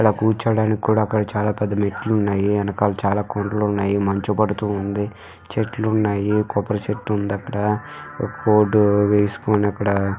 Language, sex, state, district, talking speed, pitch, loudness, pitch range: Telugu, female, Andhra Pradesh, Visakhapatnam, 135 wpm, 105 Hz, -20 LUFS, 100-110 Hz